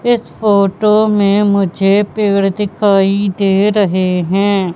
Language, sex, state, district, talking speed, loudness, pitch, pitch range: Hindi, female, Madhya Pradesh, Katni, 115 wpm, -13 LUFS, 200 Hz, 195-210 Hz